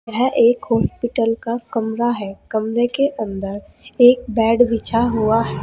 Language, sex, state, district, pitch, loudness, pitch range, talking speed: Hindi, female, Uttar Pradesh, Saharanpur, 230 Hz, -18 LUFS, 220-240 Hz, 150 wpm